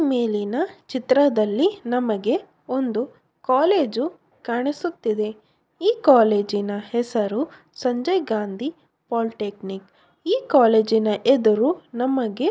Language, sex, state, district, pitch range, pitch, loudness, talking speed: Kannada, female, Karnataka, Bellary, 215-285 Hz, 245 Hz, -22 LUFS, 85 wpm